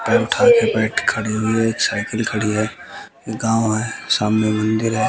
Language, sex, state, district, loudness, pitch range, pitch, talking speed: Hindi, male, Bihar, West Champaran, -18 LUFS, 110-115 Hz, 110 Hz, 200 wpm